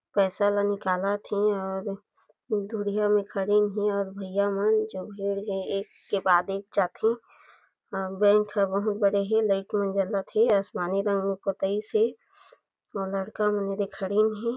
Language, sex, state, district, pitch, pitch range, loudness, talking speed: Chhattisgarhi, female, Chhattisgarh, Jashpur, 200 Hz, 195-210 Hz, -27 LUFS, 170 wpm